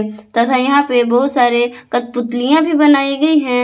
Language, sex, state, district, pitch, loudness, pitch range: Hindi, female, Jharkhand, Palamu, 250 Hz, -14 LUFS, 240-280 Hz